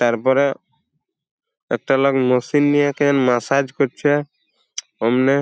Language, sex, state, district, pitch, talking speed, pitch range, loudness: Bengali, male, West Bengal, Purulia, 140 Hz, 110 wpm, 130-145 Hz, -18 LUFS